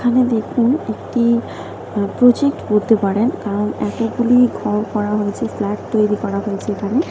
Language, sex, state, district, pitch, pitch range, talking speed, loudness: Bengali, female, West Bengal, Kolkata, 220 Hz, 205-245 Hz, 135 wpm, -18 LUFS